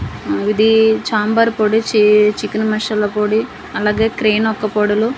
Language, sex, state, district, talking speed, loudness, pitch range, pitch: Telugu, female, Andhra Pradesh, Manyam, 115 wpm, -15 LUFS, 210-220 Hz, 215 Hz